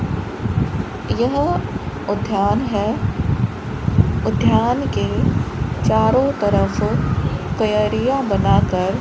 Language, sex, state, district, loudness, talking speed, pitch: Hindi, female, Rajasthan, Bikaner, -19 LUFS, 65 wpm, 130 Hz